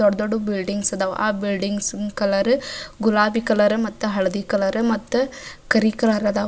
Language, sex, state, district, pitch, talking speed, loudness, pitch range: Kannada, female, Karnataka, Dharwad, 210 Hz, 150 wpm, -21 LUFS, 200-225 Hz